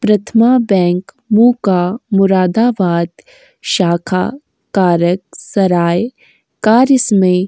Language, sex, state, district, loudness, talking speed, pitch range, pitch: Hindi, female, Uttar Pradesh, Jyotiba Phule Nagar, -13 LUFS, 80 wpm, 180-235 Hz, 195 Hz